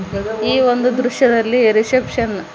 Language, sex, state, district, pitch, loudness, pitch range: Kannada, female, Karnataka, Koppal, 235 Hz, -15 LUFS, 215-250 Hz